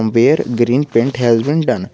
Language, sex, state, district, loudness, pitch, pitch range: English, male, Jharkhand, Garhwa, -14 LUFS, 120 Hz, 115-130 Hz